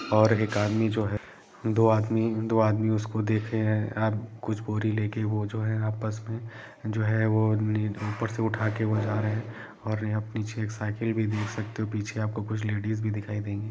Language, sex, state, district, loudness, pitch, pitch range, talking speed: Hindi, male, Jharkhand, Jamtara, -28 LUFS, 110 Hz, 105-110 Hz, 210 wpm